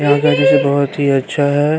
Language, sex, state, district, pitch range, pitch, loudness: Hindi, male, Uttar Pradesh, Hamirpur, 140-145 Hz, 140 Hz, -14 LUFS